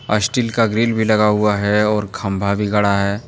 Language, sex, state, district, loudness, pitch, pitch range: Hindi, male, Jharkhand, Deoghar, -17 LUFS, 105 Hz, 100-110 Hz